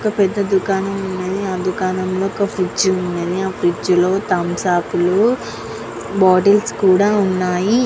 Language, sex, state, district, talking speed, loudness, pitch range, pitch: Telugu, female, Andhra Pradesh, Guntur, 130 wpm, -17 LUFS, 185-200 Hz, 190 Hz